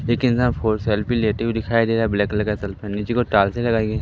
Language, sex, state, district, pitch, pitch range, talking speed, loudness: Hindi, male, Madhya Pradesh, Katni, 110 Hz, 105-120 Hz, 255 wpm, -20 LUFS